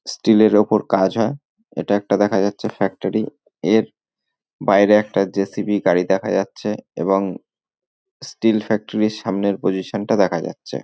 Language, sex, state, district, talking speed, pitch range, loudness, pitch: Bengali, male, West Bengal, North 24 Parganas, 140 wpm, 100-110 Hz, -19 LUFS, 105 Hz